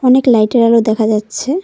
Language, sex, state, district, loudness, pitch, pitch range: Bengali, female, West Bengal, Cooch Behar, -12 LUFS, 230 Hz, 220-255 Hz